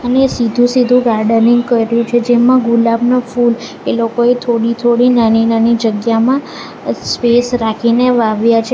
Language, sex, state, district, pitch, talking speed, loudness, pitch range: Gujarati, female, Gujarat, Valsad, 235 Hz, 130 wpm, -12 LUFS, 230-245 Hz